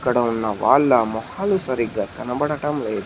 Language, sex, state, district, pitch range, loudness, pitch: Telugu, male, Telangana, Hyderabad, 115-150 Hz, -21 LUFS, 125 Hz